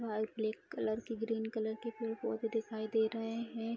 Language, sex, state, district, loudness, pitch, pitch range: Hindi, female, Bihar, Araria, -38 LUFS, 225 Hz, 220-225 Hz